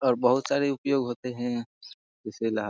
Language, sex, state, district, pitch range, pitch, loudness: Hindi, male, Bihar, Jamui, 120-135 Hz, 125 Hz, -27 LUFS